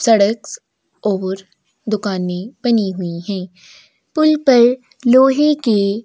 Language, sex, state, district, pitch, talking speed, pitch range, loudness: Hindi, female, Chhattisgarh, Korba, 215 Hz, 100 wpm, 190-255 Hz, -16 LUFS